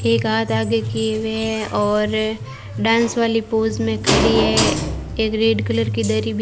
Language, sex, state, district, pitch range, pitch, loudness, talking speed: Hindi, female, Rajasthan, Bikaner, 110-130 Hz, 110 Hz, -19 LUFS, 185 wpm